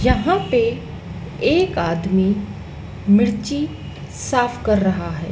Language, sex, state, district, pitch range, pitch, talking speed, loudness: Hindi, female, Madhya Pradesh, Dhar, 170-245 Hz, 200 Hz, 100 wpm, -19 LUFS